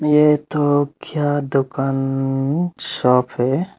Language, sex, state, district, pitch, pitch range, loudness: Hindi, male, Tripura, Unakoti, 145 Hz, 135-150 Hz, -18 LUFS